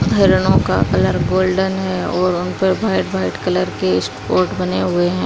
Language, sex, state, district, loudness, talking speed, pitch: Hindi, female, Uttar Pradesh, Muzaffarnagar, -17 LUFS, 185 wpm, 95 Hz